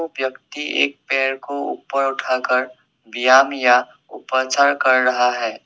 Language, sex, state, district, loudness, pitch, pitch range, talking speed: Hindi, male, Assam, Sonitpur, -18 LUFS, 130 Hz, 125-140 Hz, 125 wpm